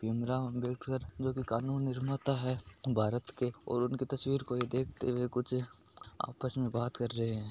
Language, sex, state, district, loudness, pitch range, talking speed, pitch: Marwari, male, Rajasthan, Nagaur, -35 LUFS, 120-130 Hz, 175 wpm, 125 Hz